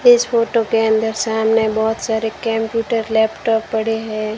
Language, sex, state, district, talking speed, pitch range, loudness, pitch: Hindi, female, Rajasthan, Bikaner, 150 wpm, 220-225 Hz, -17 LUFS, 225 Hz